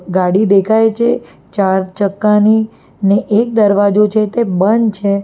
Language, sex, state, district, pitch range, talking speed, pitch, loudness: Gujarati, female, Gujarat, Valsad, 200-220 Hz, 135 wpm, 210 Hz, -13 LUFS